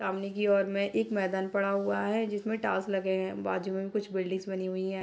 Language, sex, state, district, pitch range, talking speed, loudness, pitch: Hindi, female, Bihar, Purnia, 190-200 Hz, 240 wpm, -31 LUFS, 195 Hz